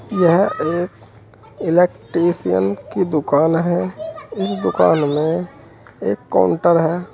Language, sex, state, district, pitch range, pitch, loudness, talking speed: Hindi, male, Uttar Pradesh, Saharanpur, 110-175 Hz, 165 Hz, -18 LUFS, 100 wpm